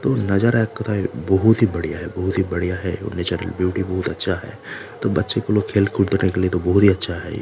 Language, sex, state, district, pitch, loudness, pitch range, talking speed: Hindi, male, Jharkhand, Jamtara, 95 Hz, -20 LUFS, 90-105 Hz, 240 wpm